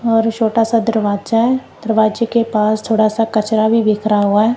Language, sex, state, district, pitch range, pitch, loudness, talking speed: Hindi, female, Punjab, Kapurthala, 215-230 Hz, 220 Hz, -15 LUFS, 185 wpm